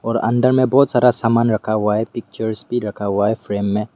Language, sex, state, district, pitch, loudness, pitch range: Hindi, male, Meghalaya, West Garo Hills, 110 Hz, -18 LUFS, 105-120 Hz